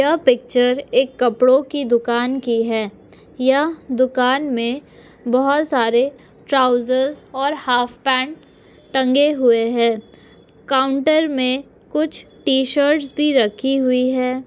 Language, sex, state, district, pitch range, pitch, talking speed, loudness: Hindi, female, Chhattisgarh, Raigarh, 245-280 Hz, 260 Hz, 120 wpm, -18 LUFS